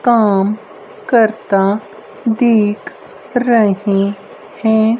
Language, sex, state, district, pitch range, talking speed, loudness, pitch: Hindi, female, Haryana, Rohtak, 200-230 Hz, 60 wpm, -14 LUFS, 215 Hz